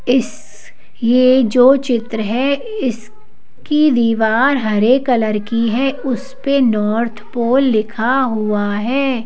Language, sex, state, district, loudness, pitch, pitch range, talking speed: Hindi, female, Madhya Pradesh, Bhopal, -15 LUFS, 240 Hz, 220-265 Hz, 115 wpm